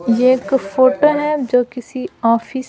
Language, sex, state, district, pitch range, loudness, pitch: Hindi, female, Bihar, Patna, 245-270 Hz, -16 LUFS, 255 Hz